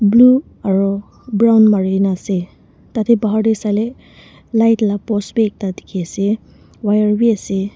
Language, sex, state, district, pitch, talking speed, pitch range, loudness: Nagamese, female, Nagaland, Dimapur, 210 Hz, 145 wpm, 195-225 Hz, -16 LUFS